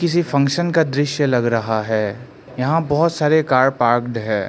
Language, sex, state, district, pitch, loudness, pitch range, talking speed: Hindi, male, Arunachal Pradesh, Lower Dibang Valley, 135 Hz, -18 LUFS, 120-155 Hz, 175 wpm